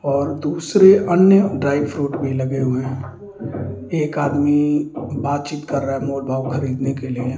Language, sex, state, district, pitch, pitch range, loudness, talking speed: Hindi, male, Delhi, New Delhi, 140 Hz, 130-150 Hz, -19 LUFS, 170 wpm